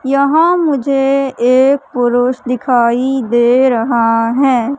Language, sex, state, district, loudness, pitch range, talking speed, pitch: Hindi, female, Madhya Pradesh, Katni, -12 LUFS, 240-275 Hz, 100 wpm, 255 Hz